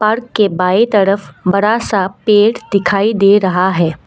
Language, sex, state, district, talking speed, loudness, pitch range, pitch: Hindi, female, Assam, Kamrup Metropolitan, 160 wpm, -13 LUFS, 190-210 Hz, 200 Hz